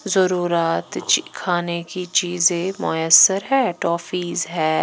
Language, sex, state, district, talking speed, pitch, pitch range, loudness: Hindi, female, Punjab, Pathankot, 135 wpm, 175 Hz, 170-185 Hz, -19 LUFS